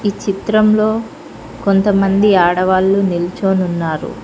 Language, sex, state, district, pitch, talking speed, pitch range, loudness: Telugu, female, Telangana, Mahabubabad, 195 Hz, 85 wpm, 185-205 Hz, -14 LUFS